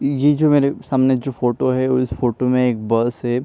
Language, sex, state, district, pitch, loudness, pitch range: Hindi, male, Maharashtra, Chandrapur, 130 Hz, -18 LUFS, 120-135 Hz